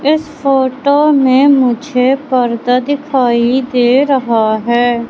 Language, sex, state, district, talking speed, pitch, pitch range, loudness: Hindi, female, Madhya Pradesh, Katni, 105 wpm, 260 Hz, 240-280 Hz, -12 LUFS